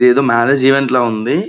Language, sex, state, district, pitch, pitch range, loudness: Telugu, male, Andhra Pradesh, Srikakulam, 125 Hz, 115-135 Hz, -13 LUFS